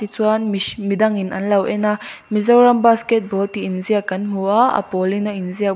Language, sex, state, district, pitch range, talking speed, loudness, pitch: Mizo, female, Mizoram, Aizawl, 195-215 Hz, 200 wpm, -18 LUFS, 205 Hz